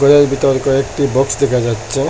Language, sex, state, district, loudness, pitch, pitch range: Bengali, male, Assam, Hailakandi, -14 LUFS, 135 Hz, 130-140 Hz